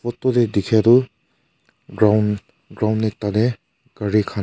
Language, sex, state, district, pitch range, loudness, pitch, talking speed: Nagamese, male, Nagaland, Kohima, 105-120 Hz, -19 LUFS, 110 Hz, 135 wpm